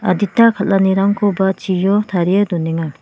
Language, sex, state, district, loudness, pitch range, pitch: Garo, female, Meghalaya, West Garo Hills, -15 LUFS, 185-200 Hz, 195 Hz